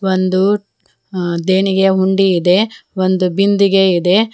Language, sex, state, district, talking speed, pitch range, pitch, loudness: Kannada, female, Karnataka, Koppal, 110 wpm, 185-195 Hz, 190 Hz, -14 LUFS